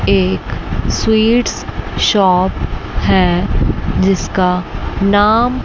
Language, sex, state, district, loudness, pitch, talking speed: Hindi, female, Chandigarh, Chandigarh, -14 LUFS, 185 Hz, 65 wpm